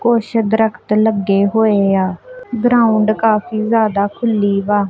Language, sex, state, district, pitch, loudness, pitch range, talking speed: Punjabi, female, Punjab, Kapurthala, 215 Hz, -15 LUFS, 200-230 Hz, 120 wpm